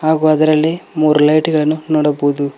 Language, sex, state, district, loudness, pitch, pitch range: Kannada, male, Karnataka, Koppal, -14 LUFS, 155 Hz, 150-155 Hz